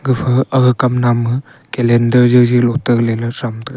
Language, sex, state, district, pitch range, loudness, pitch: Wancho, male, Arunachal Pradesh, Longding, 120-125 Hz, -14 LUFS, 125 Hz